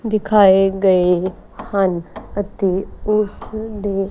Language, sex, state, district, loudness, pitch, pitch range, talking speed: Punjabi, female, Punjab, Kapurthala, -17 LUFS, 200 Hz, 190-215 Hz, 85 wpm